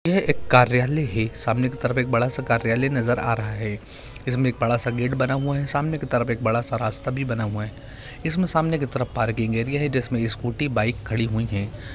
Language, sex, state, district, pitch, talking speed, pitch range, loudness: Hindi, male, Bihar, Purnia, 120 Hz, 265 wpm, 115-135 Hz, -23 LUFS